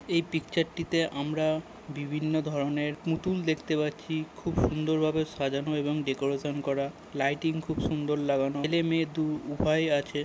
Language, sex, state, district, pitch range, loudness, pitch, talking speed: Bengali, male, West Bengal, Kolkata, 145-160 Hz, -29 LUFS, 155 Hz, 140 wpm